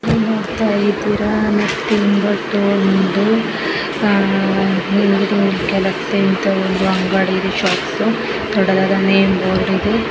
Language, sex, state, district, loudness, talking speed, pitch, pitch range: Kannada, female, Karnataka, Mysore, -16 LUFS, 55 wpm, 200 Hz, 195-210 Hz